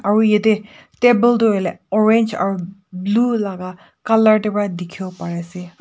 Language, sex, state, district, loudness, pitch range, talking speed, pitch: Nagamese, female, Nagaland, Kohima, -17 LUFS, 185-220 Hz, 175 wpm, 205 Hz